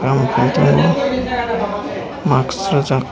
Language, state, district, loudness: Kokborok, Tripura, Dhalai, -17 LUFS